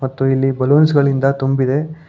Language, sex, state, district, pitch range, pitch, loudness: Kannada, male, Karnataka, Bangalore, 135-145 Hz, 135 Hz, -15 LUFS